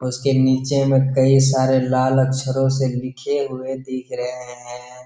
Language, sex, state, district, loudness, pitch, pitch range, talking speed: Hindi, male, Bihar, Jamui, -19 LUFS, 130 Hz, 130-135 Hz, 165 wpm